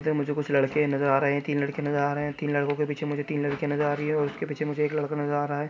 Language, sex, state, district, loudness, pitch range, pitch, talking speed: Hindi, male, Maharashtra, Solapur, -27 LUFS, 145-150 Hz, 145 Hz, 355 wpm